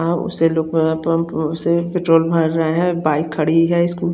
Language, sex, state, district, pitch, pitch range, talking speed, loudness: Hindi, female, Chandigarh, Chandigarh, 165 Hz, 160-170 Hz, 70 wpm, -17 LUFS